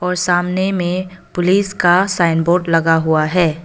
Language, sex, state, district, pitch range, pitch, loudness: Hindi, female, Arunachal Pradesh, Papum Pare, 165-185 Hz, 175 Hz, -15 LUFS